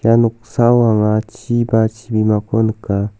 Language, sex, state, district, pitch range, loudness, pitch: Garo, male, Meghalaya, South Garo Hills, 105-115 Hz, -16 LUFS, 110 Hz